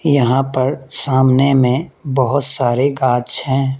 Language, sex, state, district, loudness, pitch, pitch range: Hindi, male, Mizoram, Aizawl, -15 LUFS, 135 Hz, 130-140 Hz